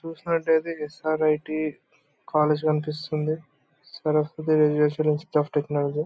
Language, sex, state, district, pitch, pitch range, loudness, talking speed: Telugu, male, Andhra Pradesh, Anantapur, 155 Hz, 150-155 Hz, -25 LUFS, 80 wpm